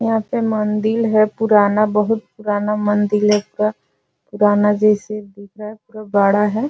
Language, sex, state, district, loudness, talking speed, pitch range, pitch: Hindi, female, Bihar, Jahanabad, -17 LUFS, 150 wpm, 210-215 Hz, 210 Hz